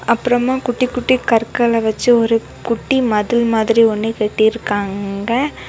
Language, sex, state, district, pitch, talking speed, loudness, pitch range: Tamil, female, Tamil Nadu, Kanyakumari, 230 Hz, 125 wpm, -16 LUFS, 220-245 Hz